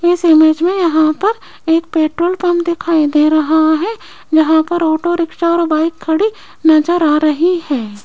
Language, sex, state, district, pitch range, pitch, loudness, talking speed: Hindi, female, Rajasthan, Jaipur, 315-345 Hz, 325 Hz, -13 LUFS, 165 wpm